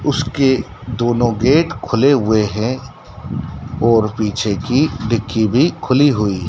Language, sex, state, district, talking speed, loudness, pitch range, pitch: Hindi, male, Madhya Pradesh, Dhar, 130 wpm, -16 LUFS, 110-135 Hz, 120 Hz